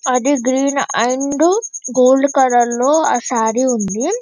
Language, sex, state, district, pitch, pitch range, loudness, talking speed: Telugu, female, Telangana, Karimnagar, 260 Hz, 245-285 Hz, -15 LUFS, 130 wpm